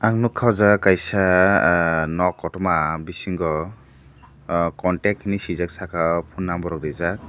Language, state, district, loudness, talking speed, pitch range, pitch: Kokborok, Tripura, Dhalai, -20 LUFS, 150 wpm, 80-100 Hz, 90 Hz